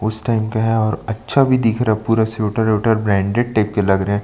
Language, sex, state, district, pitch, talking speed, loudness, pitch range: Hindi, male, Chhattisgarh, Sukma, 110 Hz, 285 wpm, -17 LUFS, 105-115 Hz